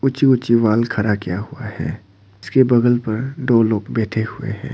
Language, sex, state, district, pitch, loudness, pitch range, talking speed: Hindi, male, Arunachal Pradesh, Papum Pare, 115 Hz, -18 LUFS, 105-125 Hz, 190 wpm